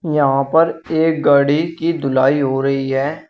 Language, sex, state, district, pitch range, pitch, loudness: Hindi, male, Uttar Pradesh, Shamli, 135-160 Hz, 145 Hz, -16 LUFS